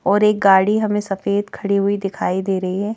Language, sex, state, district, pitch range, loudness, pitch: Hindi, female, Madhya Pradesh, Bhopal, 195-205 Hz, -18 LUFS, 200 Hz